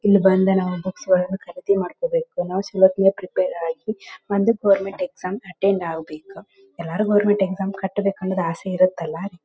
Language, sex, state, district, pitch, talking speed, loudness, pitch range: Kannada, female, Karnataka, Dharwad, 190 Hz, 160 wpm, -21 LUFS, 185-200 Hz